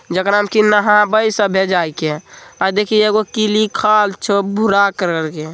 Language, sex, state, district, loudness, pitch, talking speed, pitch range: Hindi, male, Bihar, Begusarai, -15 LUFS, 205 Hz, 110 wpm, 185-215 Hz